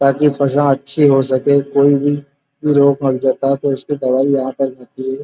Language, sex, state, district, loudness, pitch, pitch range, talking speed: Hindi, male, Uttar Pradesh, Muzaffarnagar, -15 LUFS, 140 Hz, 135-140 Hz, 205 wpm